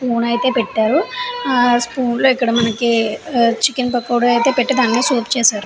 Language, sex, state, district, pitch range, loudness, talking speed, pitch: Telugu, female, Andhra Pradesh, Chittoor, 235-255 Hz, -16 LUFS, 160 wpm, 240 Hz